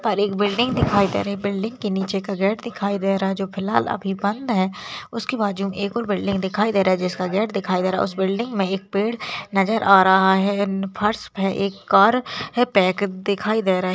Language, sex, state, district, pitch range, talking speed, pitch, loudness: Hindi, female, Rajasthan, Nagaur, 195-210 Hz, 240 wpm, 200 Hz, -21 LUFS